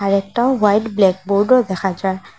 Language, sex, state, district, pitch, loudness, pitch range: Bengali, female, Assam, Hailakandi, 200 Hz, -16 LUFS, 190-220 Hz